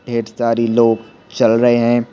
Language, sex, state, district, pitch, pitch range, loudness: Hindi, male, Bihar, Patna, 115 Hz, 115-120 Hz, -15 LUFS